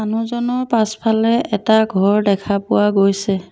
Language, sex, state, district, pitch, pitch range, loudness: Assamese, female, Assam, Sonitpur, 215 Hz, 200-225 Hz, -16 LUFS